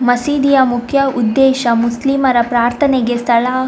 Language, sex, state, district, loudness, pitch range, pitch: Kannada, female, Karnataka, Dakshina Kannada, -13 LUFS, 240-270 Hz, 250 Hz